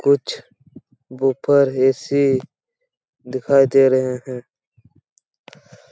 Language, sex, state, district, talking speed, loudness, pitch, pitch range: Hindi, male, Chhattisgarh, Raigarh, 70 wpm, -18 LUFS, 135 Hz, 130-140 Hz